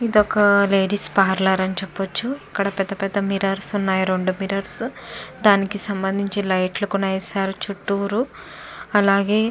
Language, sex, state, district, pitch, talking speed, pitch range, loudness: Telugu, female, Andhra Pradesh, Chittoor, 195 Hz, 125 wpm, 195-205 Hz, -21 LUFS